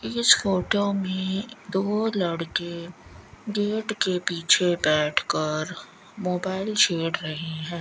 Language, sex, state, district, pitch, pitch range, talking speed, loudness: Hindi, female, Rajasthan, Bikaner, 180 Hz, 165-200 Hz, 105 wpm, -24 LUFS